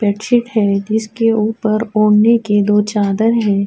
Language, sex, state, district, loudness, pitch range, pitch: Urdu, female, Uttar Pradesh, Budaun, -14 LUFS, 205-225 Hz, 215 Hz